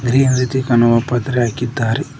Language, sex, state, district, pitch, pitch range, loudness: Kannada, male, Karnataka, Koppal, 125 Hz, 120-130 Hz, -16 LUFS